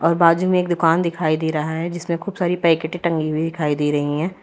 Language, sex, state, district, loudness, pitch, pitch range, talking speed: Hindi, female, Uttar Pradesh, Lalitpur, -20 LUFS, 165 Hz, 155-175 Hz, 245 wpm